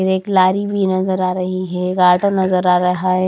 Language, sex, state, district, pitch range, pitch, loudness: Hindi, female, Punjab, Kapurthala, 180-190 Hz, 185 Hz, -16 LUFS